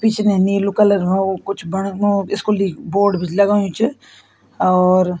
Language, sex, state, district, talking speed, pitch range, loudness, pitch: Garhwali, female, Uttarakhand, Tehri Garhwal, 175 wpm, 190-205 Hz, -17 LUFS, 200 Hz